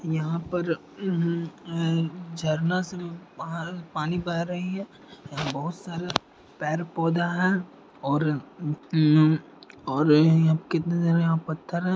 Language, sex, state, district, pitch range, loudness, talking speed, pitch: Hindi, male, Uttar Pradesh, Deoria, 160-175 Hz, -26 LUFS, 95 wpm, 165 Hz